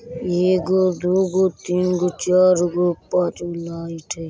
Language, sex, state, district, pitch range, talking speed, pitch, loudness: Bajjika, male, Bihar, Vaishali, 170-185 Hz, 155 wpm, 180 Hz, -20 LUFS